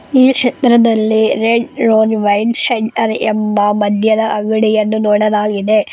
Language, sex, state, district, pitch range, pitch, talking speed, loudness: Kannada, female, Karnataka, Koppal, 210-230 Hz, 220 Hz, 100 wpm, -13 LUFS